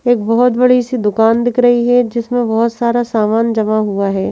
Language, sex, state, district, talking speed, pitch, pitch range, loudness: Hindi, female, Madhya Pradesh, Bhopal, 210 wpm, 235 Hz, 220-245 Hz, -13 LUFS